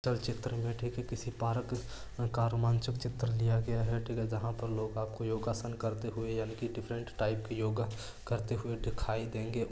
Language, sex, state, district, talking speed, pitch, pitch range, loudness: Hindi, male, Rajasthan, Churu, 200 wpm, 115 Hz, 110-120 Hz, -36 LUFS